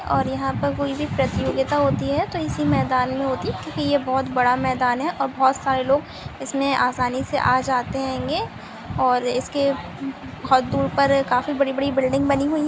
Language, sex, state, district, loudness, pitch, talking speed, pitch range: Hindi, female, Rajasthan, Nagaur, -22 LUFS, 260 Hz, 190 wpm, 250-275 Hz